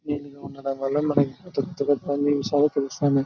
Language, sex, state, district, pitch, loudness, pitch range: Telugu, male, Andhra Pradesh, Chittoor, 145 Hz, -24 LUFS, 140-145 Hz